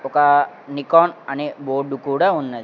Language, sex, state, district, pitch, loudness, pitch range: Telugu, male, Andhra Pradesh, Sri Satya Sai, 140 Hz, -18 LUFS, 135-150 Hz